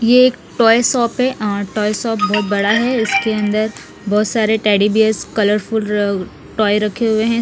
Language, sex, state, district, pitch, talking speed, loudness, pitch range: Hindi, female, Punjab, Fazilka, 215 Hz, 195 wpm, -16 LUFS, 210-230 Hz